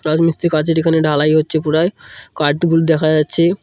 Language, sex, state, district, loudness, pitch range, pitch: Bengali, male, West Bengal, Cooch Behar, -15 LUFS, 155-165 Hz, 160 Hz